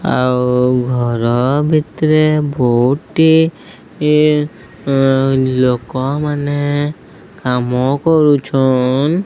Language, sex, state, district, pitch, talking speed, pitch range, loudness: Odia, male, Odisha, Sambalpur, 135 Hz, 45 wpm, 125-150 Hz, -14 LUFS